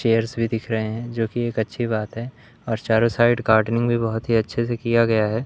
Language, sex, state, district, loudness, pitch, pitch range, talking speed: Hindi, male, Madhya Pradesh, Umaria, -21 LUFS, 115 Hz, 110-120 Hz, 255 wpm